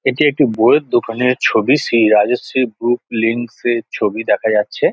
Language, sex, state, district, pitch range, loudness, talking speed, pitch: Bengali, male, West Bengal, Jhargram, 115-125 Hz, -15 LUFS, 160 wpm, 120 Hz